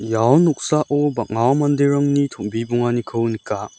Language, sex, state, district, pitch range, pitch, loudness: Garo, male, Meghalaya, South Garo Hills, 115-145 Hz, 125 Hz, -19 LUFS